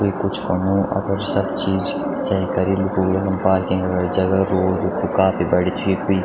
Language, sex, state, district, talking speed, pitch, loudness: Garhwali, male, Uttarakhand, Tehri Garhwal, 210 wpm, 95 Hz, -19 LUFS